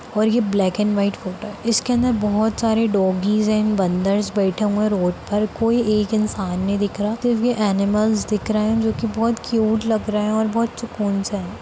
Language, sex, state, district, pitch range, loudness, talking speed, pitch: Hindi, female, Bihar, Darbhanga, 200-225 Hz, -20 LUFS, 215 wpm, 215 Hz